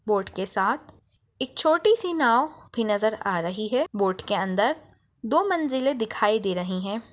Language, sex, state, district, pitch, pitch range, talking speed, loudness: Hindi, female, Chhattisgarh, Bastar, 215 Hz, 195-275 Hz, 175 wpm, -24 LUFS